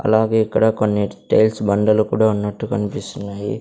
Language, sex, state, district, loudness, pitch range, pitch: Telugu, male, Andhra Pradesh, Sri Satya Sai, -18 LUFS, 105-110 Hz, 105 Hz